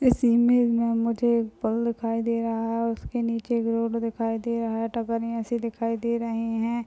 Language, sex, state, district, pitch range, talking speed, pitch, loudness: Hindi, female, Uttar Pradesh, Budaun, 230-235 Hz, 185 wpm, 230 Hz, -26 LUFS